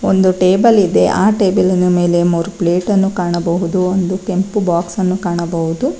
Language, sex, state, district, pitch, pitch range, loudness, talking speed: Kannada, female, Karnataka, Bangalore, 185 Hz, 175-190 Hz, -14 LUFS, 150 wpm